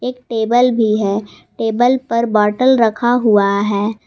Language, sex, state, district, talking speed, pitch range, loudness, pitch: Hindi, female, Jharkhand, Garhwa, 135 wpm, 210-245 Hz, -15 LUFS, 225 Hz